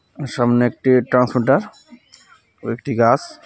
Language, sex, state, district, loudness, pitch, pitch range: Bengali, male, West Bengal, Cooch Behar, -17 LUFS, 130 Hz, 125-200 Hz